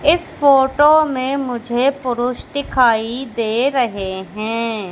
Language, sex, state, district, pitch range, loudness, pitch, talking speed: Hindi, female, Madhya Pradesh, Katni, 230-275 Hz, -17 LUFS, 250 Hz, 110 wpm